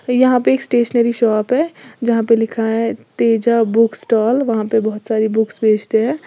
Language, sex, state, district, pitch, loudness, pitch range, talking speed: Hindi, female, Uttar Pradesh, Lalitpur, 230 Hz, -16 LUFS, 220-240 Hz, 190 wpm